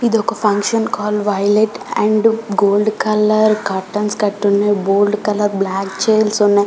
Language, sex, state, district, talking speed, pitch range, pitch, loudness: Telugu, female, Telangana, Karimnagar, 135 wpm, 205-215 Hz, 210 Hz, -16 LUFS